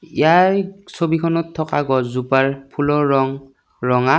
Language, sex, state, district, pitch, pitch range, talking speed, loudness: Assamese, male, Assam, Kamrup Metropolitan, 145 Hz, 135-165 Hz, 100 wpm, -18 LUFS